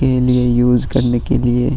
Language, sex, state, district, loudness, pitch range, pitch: Hindi, male, Bihar, Vaishali, -15 LUFS, 120-130 Hz, 125 Hz